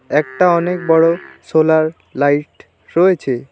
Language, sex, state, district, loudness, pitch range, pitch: Bengali, male, West Bengal, Alipurduar, -15 LUFS, 145-170 Hz, 160 Hz